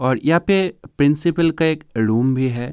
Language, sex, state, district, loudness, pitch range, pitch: Hindi, male, Bihar, Kishanganj, -18 LUFS, 130-165 Hz, 150 Hz